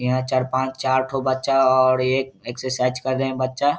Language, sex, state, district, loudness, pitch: Hindi, male, Bihar, Saharsa, -21 LUFS, 130 Hz